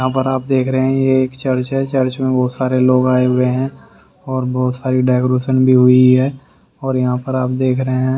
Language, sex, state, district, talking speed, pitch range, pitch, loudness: Hindi, male, Haryana, Rohtak, 235 wpm, 125-130 Hz, 130 Hz, -15 LUFS